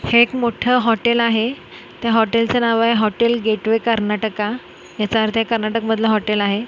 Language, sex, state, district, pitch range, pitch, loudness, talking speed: Marathi, female, Maharashtra, Mumbai Suburban, 215-235 Hz, 225 Hz, -18 LUFS, 170 wpm